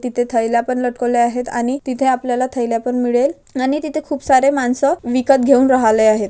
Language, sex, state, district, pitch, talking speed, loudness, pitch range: Marathi, male, Maharashtra, Chandrapur, 250 Hz, 190 wpm, -16 LUFS, 240-265 Hz